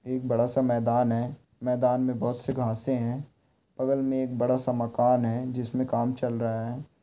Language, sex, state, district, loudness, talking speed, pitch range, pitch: Hindi, male, Bihar, Bhagalpur, -27 LUFS, 180 wpm, 120-130 Hz, 125 Hz